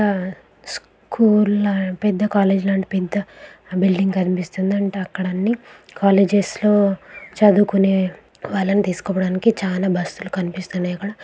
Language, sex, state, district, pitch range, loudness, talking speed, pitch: Telugu, female, Andhra Pradesh, Guntur, 185-205 Hz, -19 LUFS, 90 wpm, 195 Hz